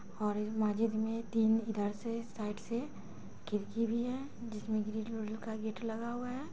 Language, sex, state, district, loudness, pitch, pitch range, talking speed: Maithili, female, Bihar, Samastipur, -37 LUFS, 220 Hz, 215-230 Hz, 185 wpm